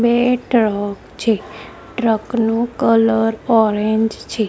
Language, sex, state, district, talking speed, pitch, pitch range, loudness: Gujarati, female, Gujarat, Gandhinagar, 105 wpm, 225 Hz, 220-235 Hz, -17 LUFS